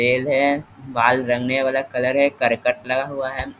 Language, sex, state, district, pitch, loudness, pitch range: Hindi, male, Bihar, East Champaran, 130 Hz, -20 LUFS, 125-135 Hz